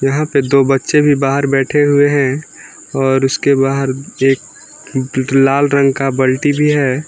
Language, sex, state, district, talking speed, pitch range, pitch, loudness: Hindi, male, Jharkhand, Garhwa, 160 wpm, 135-145 Hz, 135 Hz, -13 LUFS